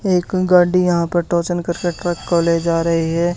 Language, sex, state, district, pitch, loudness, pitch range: Hindi, male, Haryana, Charkhi Dadri, 175 Hz, -17 LUFS, 170-175 Hz